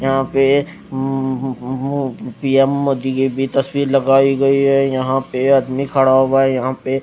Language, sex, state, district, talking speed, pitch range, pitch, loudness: Hindi, female, Punjab, Fazilka, 155 wpm, 130-135 Hz, 135 Hz, -16 LUFS